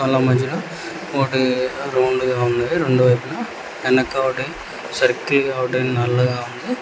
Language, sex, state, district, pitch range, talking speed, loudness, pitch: Telugu, male, Telangana, Hyderabad, 125-135 Hz, 130 wpm, -19 LUFS, 130 Hz